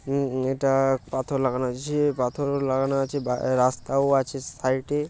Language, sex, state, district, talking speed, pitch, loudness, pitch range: Bengali, male, West Bengal, Paschim Medinipur, 165 wpm, 135 Hz, -25 LUFS, 130-140 Hz